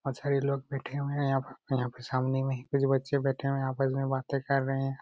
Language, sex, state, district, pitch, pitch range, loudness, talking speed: Hindi, male, Jharkhand, Jamtara, 135 Hz, 135-140 Hz, -31 LUFS, 285 wpm